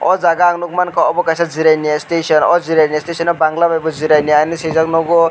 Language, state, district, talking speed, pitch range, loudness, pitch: Kokborok, Tripura, West Tripura, 215 wpm, 155-170 Hz, -14 LUFS, 165 Hz